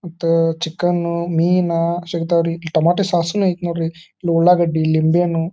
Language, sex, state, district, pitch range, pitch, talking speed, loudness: Kannada, male, Karnataka, Dharwad, 165-175 Hz, 170 Hz, 140 wpm, -18 LUFS